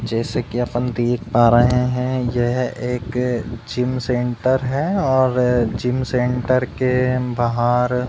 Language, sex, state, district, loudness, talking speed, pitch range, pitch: Hindi, male, Uttar Pradesh, Budaun, -19 LUFS, 135 wpm, 120-125 Hz, 125 Hz